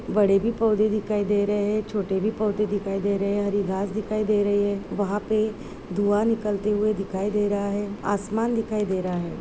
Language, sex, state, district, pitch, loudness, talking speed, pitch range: Hindi, female, Maharashtra, Nagpur, 205 Hz, -24 LUFS, 215 wpm, 200-215 Hz